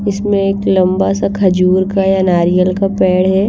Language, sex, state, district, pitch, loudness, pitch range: Hindi, female, Bihar, Patna, 190 Hz, -13 LUFS, 185-195 Hz